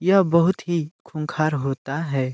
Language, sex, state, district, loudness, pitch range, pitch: Hindi, male, Uttar Pradesh, Deoria, -22 LUFS, 145-175 Hz, 155 Hz